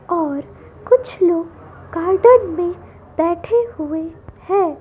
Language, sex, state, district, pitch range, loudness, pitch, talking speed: Hindi, female, Madhya Pradesh, Dhar, 330-400 Hz, -17 LUFS, 350 Hz, 100 wpm